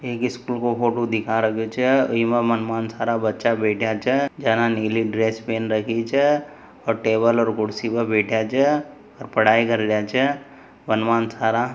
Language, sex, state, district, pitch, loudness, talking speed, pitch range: Marwari, male, Rajasthan, Nagaur, 115 Hz, -21 LUFS, 155 wpm, 110-125 Hz